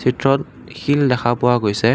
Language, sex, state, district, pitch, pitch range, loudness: Assamese, male, Assam, Kamrup Metropolitan, 125 Hz, 120-135 Hz, -18 LUFS